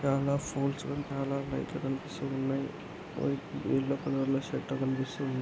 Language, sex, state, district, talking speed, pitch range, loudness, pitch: Telugu, male, Andhra Pradesh, Anantapur, 145 wpm, 135-140 Hz, -33 LUFS, 135 Hz